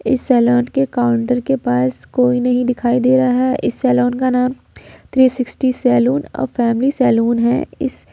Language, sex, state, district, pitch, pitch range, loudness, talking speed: Hindi, female, Jharkhand, Ranchi, 250 Hz, 240-255 Hz, -16 LUFS, 175 wpm